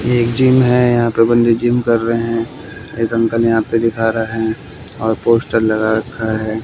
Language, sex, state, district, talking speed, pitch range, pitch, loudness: Hindi, male, Haryana, Jhajjar, 210 wpm, 110-120 Hz, 115 Hz, -15 LUFS